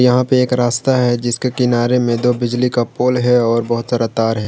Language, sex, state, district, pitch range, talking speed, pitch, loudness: Hindi, male, Jharkhand, Garhwa, 120-125 Hz, 240 wpm, 120 Hz, -15 LUFS